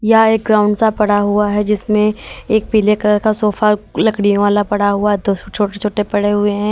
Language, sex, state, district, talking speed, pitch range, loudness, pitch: Hindi, female, Uttar Pradesh, Lalitpur, 205 wpm, 205-215 Hz, -14 LUFS, 210 Hz